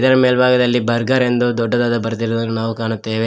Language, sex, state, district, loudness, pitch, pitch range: Kannada, male, Karnataka, Koppal, -16 LUFS, 120 Hz, 115-125 Hz